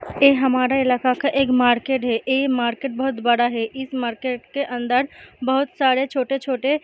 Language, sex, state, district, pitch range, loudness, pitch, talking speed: Hindi, female, Uttar Pradesh, Deoria, 245-270 Hz, -20 LUFS, 260 Hz, 175 wpm